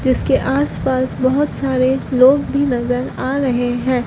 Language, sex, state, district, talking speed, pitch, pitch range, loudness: Hindi, female, Madhya Pradesh, Dhar, 160 wpm, 260 Hz, 250-275 Hz, -17 LUFS